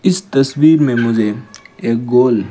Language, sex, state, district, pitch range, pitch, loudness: Hindi, male, Rajasthan, Bikaner, 115-145 Hz, 125 Hz, -14 LUFS